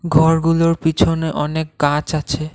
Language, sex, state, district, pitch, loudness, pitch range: Bengali, male, Assam, Kamrup Metropolitan, 160 Hz, -17 LUFS, 155-165 Hz